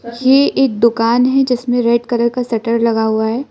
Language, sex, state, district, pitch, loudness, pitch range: Hindi, female, Arunachal Pradesh, Lower Dibang Valley, 235 Hz, -14 LUFS, 230-250 Hz